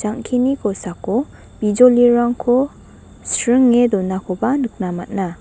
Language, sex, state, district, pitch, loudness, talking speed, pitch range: Garo, female, Meghalaya, West Garo Hills, 240 Hz, -17 LUFS, 80 wpm, 195-250 Hz